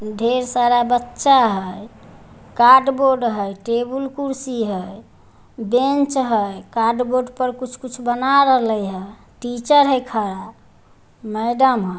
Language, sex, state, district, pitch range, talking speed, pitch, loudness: Magahi, female, Bihar, Samastipur, 220-260 Hz, 120 wpm, 245 Hz, -18 LUFS